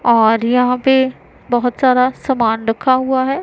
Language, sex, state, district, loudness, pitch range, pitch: Hindi, female, Punjab, Pathankot, -15 LUFS, 235-260 Hz, 250 Hz